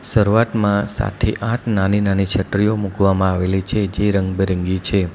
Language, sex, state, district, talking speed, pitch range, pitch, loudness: Gujarati, male, Gujarat, Valsad, 140 wpm, 95-105 Hz, 100 Hz, -18 LUFS